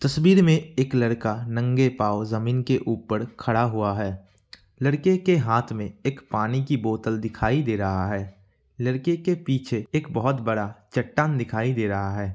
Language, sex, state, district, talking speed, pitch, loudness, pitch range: Hindi, male, Bihar, Kishanganj, 170 wpm, 115 Hz, -24 LUFS, 105-135 Hz